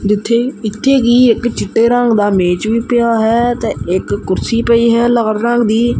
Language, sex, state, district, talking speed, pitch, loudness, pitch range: Punjabi, male, Punjab, Kapurthala, 190 wpm, 230 Hz, -13 LUFS, 215-240 Hz